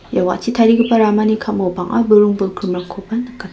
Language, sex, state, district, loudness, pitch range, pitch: Garo, female, Meghalaya, South Garo Hills, -15 LUFS, 190-225 Hz, 210 Hz